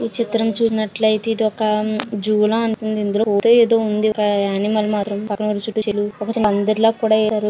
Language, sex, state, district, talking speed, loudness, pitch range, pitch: Telugu, female, Andhra Pradesh, Visakhapatnam, 90 wpm, -18 LUFS, 210-220 Hz, 215 Hz